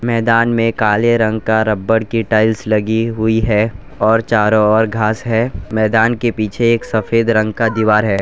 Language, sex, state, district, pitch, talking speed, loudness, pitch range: Hindi, male, Gujarat, Valsad, 110 Hz, 180 wpm, -15 LUFS, 110-115 Hz